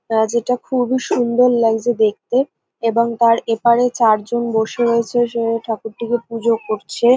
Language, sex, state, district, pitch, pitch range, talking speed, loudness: Bengali, female, West Bengal, North 24 Parganas, 235 Hz, 225-240 Hz, 125 wpm, -17 LUFS